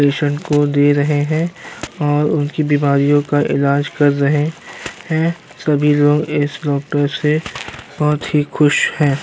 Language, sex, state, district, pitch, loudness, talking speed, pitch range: Hindi, male, Uttar Pradesh, Jyotiba Phule Nagar, 145 Hz, -16 LUFS, 145 wpm, 145-150 Hz